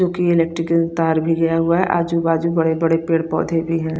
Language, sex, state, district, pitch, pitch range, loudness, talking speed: Hindi, female, Chandigarh, Chandigarh, 165 Hz, 165-170 Hz, -18 LUFS, 240 wpm